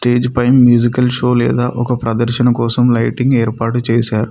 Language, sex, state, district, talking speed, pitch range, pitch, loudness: Telugu, male, Telangana, Mahabubabad, 140 wpm, 115-125 Hz, 120 Hz, -13 LUFS